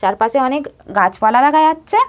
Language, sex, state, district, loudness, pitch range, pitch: Bengali, female, West Bengal, Malda, -14 LUFS, 220-315 Hz, 275 Hz